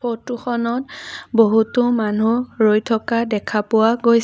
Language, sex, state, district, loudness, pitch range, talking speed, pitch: Assamese, female, Assam, Sonitpur, -18 LUFS, 220-240 Hz, 125 wpm, 230 Hz